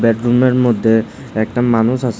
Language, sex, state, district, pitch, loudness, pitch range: Bengali, male, Tripura, West Tripura, 120 Hz, -15 LUFS, 115-125 Hz